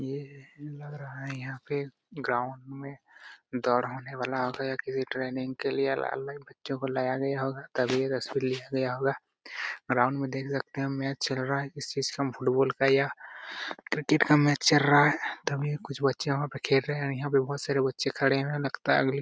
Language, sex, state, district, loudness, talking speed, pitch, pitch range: Hindi, female, Jharkhand, Jamtara, -29 LUFS, 195 wpm, 135 Hz, 130-140 Hz